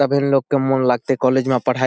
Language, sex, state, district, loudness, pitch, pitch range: Maithili, male, Bihar, Saharsa, -18 LUFS, 135 Hz, 130-135 Hz